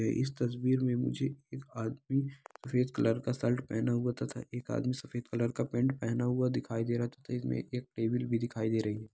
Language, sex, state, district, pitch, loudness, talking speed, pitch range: Hindi, male, Bihar, Araria, 125 Hz, -34 LUFS, 205 wpm, 115-130 Hz